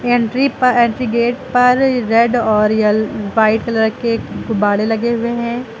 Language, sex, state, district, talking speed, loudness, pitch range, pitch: Hindi, female, Uttar Pradesh, Lucknow, 155 wpm, -15 LUFS, 220-245 Hz, 235 Hz